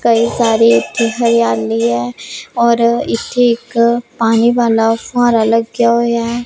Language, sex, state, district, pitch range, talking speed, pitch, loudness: Punjabi, female, Punjab, Pathankot, 225-235 Hz, 120 wpm, 230 Hz, -13 LUFS